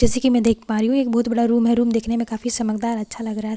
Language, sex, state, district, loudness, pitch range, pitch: Hindi, female, Bihar, Katihar, -20 LUFS, 225-240 Hz, 235 Hz